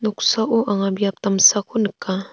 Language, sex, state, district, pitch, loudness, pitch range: Garo, female, Meghalaya, North Garo Hills, 205 Hz, -18 LUFS, 195-220 Hz